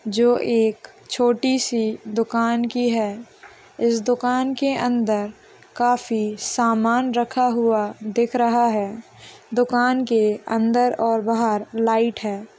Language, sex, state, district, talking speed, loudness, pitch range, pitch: Hindi, female, Rajasthan, Nagaur, 125 wpm, -21 LUFS, 225-245 Hz, 235 Hz